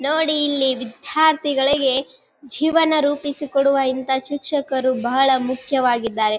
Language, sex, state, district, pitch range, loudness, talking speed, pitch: Kannada, female, Karnataka, Bijapur, 260-290 Hz, -19 LUFS, 85 wpm, 270 Hz